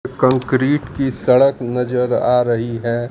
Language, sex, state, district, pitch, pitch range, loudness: Hindi, male, Bihar, Katihar, 125 Hz, 120-130 Hz, -17 LUFS